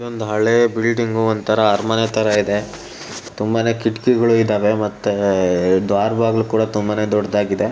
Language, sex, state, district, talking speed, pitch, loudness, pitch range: Kannada, male, Karnataka, Shimoga, 110 wpm, 110 Hz, -17 LUFS, 105-115 Hz